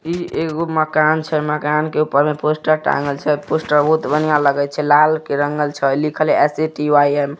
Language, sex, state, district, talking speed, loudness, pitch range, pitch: Maithili, male, Bihar, Samastipur, 180 wpm, -17 LUFS, 145-155 Hz, 150 Hz